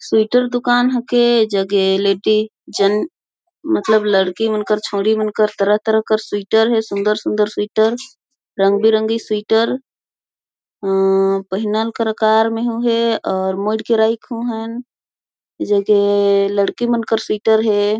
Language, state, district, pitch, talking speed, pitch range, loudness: Kurukh, Chhattisgarh, Jashpur, 220 Hz, 125 wpm, 205-230 Hz, -16 LUFS